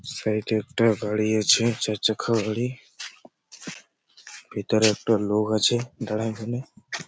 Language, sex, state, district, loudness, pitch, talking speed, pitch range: Bengali, male, West Bengal, Malda, -24 LUFS, 110 Hz, 110 wpm, 110-120 Hz